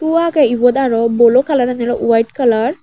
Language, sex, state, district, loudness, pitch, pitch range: Chakma, female, Tripura, West Tripura, -13 LUFS, 245 Hz, 235-280 Hz